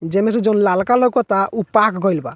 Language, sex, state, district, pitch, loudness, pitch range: Bhojpuri, male, Bihar, Muzaffarpur, 205 Hz, -16 LUFS, 190-225 Hz